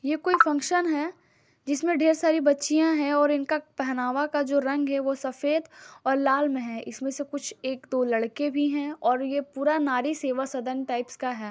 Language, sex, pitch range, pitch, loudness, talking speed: Bhojpuri, female, 265-300 Hz, 285 Hz, -26 LUFS, 205 wpm